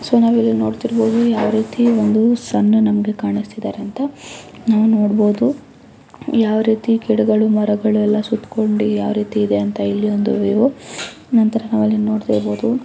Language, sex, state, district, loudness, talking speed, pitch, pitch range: Kannada, female, Karnataka, Belgaum, -17 LUFS, 135 wpm, 215 Hz, 210-230 Hz